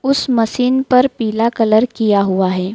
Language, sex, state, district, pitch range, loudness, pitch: Hindi, female, Madhya Pradesh, Dhar, 215-255 Hz, -15 LUFS, 230 Hz